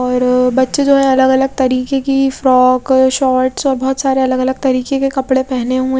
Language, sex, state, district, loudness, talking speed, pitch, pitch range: Hindi, female, Chhattisgarh, Raipur, -13 LUFS, 200 wpm, 260 Hz, 255-270 Hz